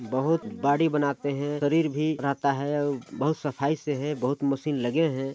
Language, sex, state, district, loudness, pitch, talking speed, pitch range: Hindi, male, Chhattisgarh, Sarguja, -27 LUFS, 145 Hz, 180 wpm, 140-150 Hz